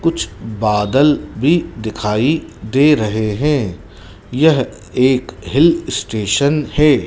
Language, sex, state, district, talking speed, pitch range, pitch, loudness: Hindi, male, Madhya Pradesh, Dhar, 100 wpm, 105-150 Hz, 125 Hz, -16 LUFS